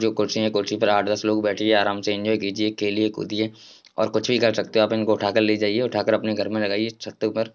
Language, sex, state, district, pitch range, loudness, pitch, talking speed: Hindi, male, Bihar, Jahanabad, 105-110 Hz, -22 LUFS, 110 Hz, 280 wpm